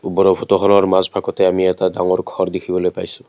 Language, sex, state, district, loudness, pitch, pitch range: Assamese, male, Assam, Kamrup Metropolitan, -16 LUFS, 95 Hz, 90-95 Hz